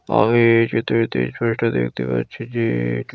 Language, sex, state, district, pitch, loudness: Bengali, male, West Bengal, Dakshin Dinajpur, 115 Hz, -19 LUFS